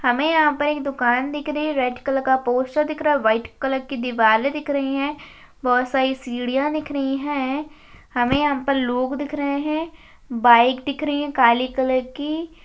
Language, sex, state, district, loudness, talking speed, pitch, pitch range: Hindi, female, Maharashtra, Aurangabad, -21 LUFS, 200 wpm, 275 Hz, 255-295 Hz